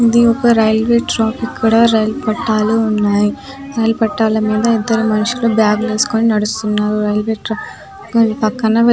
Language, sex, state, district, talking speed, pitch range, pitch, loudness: Telugu, female, Telangana, Nalgonda, 135 wpm, 215-230 Hz, 220 Hz, -14 LUFS